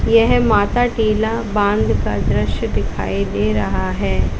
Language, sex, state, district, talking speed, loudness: Hindi, female, Uttar Pradesh, Lalitpur, 120 wpm, -18 LUFS